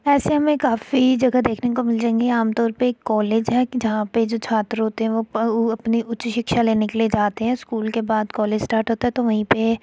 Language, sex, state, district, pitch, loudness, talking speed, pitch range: Hindi, female, Uttar Pradesh, Etah, 230 Hz, -20 LUFS, 230 wpm, 220-245 Hz